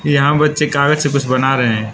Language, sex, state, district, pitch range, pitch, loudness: Hindi, male, Arunachal Pradesh, Lower Dibang Valley, 130-150 Hz, 140 Hz, -14 LUFS